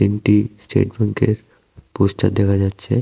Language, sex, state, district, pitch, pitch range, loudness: Bengali, male, Tripura, West Tripura, 105 Hz, 100-115 Hz, -18 LUFS